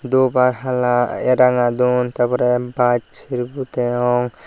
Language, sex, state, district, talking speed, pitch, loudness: Chakma, male, Tripura, Dhalai, 145 wpm, 125 Hz, -18 LUFS